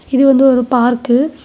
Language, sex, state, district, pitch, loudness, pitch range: Tamil, female, Tamil Nadu, Kanyakumari, 265 Hz, -12 LUFS, 245-270 Hz